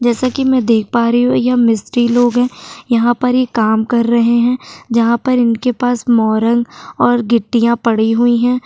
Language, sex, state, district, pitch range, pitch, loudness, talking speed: Hindi, female, Maharashtra, Chandrapur, 230-245 Hz, 240 Hz, -13 LUFS, 185 wpm